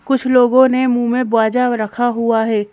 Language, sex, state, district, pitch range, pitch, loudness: Hindi, female, Madhya Pradesh, Bhopal, 225-255 Hz, 245 Hz, -15 LUFS